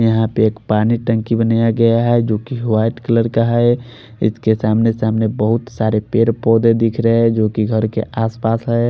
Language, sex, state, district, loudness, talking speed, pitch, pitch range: Hindi, male, Odisha, Khordha, -16 LUFS, 215 wpm, 115 Hz, 110-115 Hz